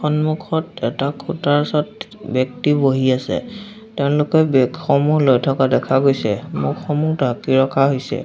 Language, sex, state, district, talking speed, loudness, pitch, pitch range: Assamese, female, Assam, Sonitpur, 115 wpm, -18 LUFS, 145 Hz, 130-155 Hz